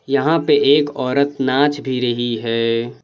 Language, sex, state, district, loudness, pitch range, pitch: Hindi, male, Jharkhand, Palamu, -17 LUFS, 120-145 Hz, 135 Hz